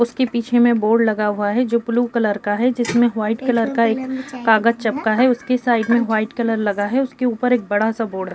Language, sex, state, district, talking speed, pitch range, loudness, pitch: Hindi, female, Uttar Pradesh, Jyotiba Phule Nagar, 245 wpm, 220-245 Hz, -18 LUFS, 235 Hz